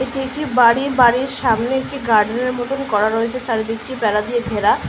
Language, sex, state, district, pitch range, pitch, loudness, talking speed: Bengali, female, West Bengal, Malda, 225-265 Hz, 245 Hz, -18 LUFS, 170 wpm